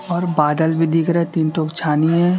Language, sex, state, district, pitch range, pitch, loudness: Hindi, male, Chhattisgarh, Raipur, 160-170 Hz, 165 Hz, -18 LUFS